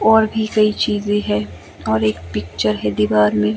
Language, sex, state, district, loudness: Hindi, female, Himachal Pradesh, Shimla, -18 LUFS